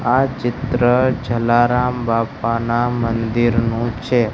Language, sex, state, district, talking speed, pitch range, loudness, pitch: Gujarati, male, Gujarat, Gandhinagar, 85 wpm, 115-125 Hz, -18 LUFS, 120 Hz